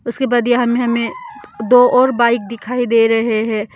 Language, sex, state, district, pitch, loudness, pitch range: Hindi, female, Mizoram, Aizawl, 240 Hz, -15 LUFS, 230-250 Hz